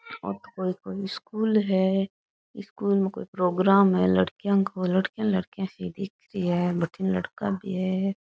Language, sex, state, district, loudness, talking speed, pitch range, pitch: Rajasthani, female, Rajasthan, Churu, -26 LUFS, 165 wpm, 185-200 Hz, 190 Hz